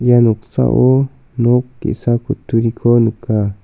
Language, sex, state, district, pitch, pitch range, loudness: Garo, male, Meghalaya, South Garo Hills, 120 Hz, 115-125 Hz, -15 LUFS